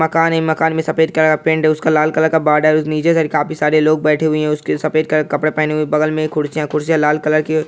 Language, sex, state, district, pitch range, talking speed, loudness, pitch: Hindi, male, Bihar, Purnia, 155-160 Hz, 265 wpm, -15 LUFS, 155 Hz